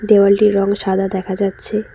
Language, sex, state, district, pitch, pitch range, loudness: Bengali, female, West Bengal, Cooch Behar, 200 Hz, 195-210 Hz, -16 LUFS